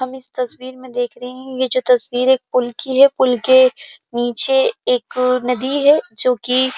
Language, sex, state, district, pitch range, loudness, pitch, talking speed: Hindi, female, Uttar Pradesh, Jyotiba Phule Nagar, 250-265 Hz, -16 LUFS, 255 Hz, 205 wpm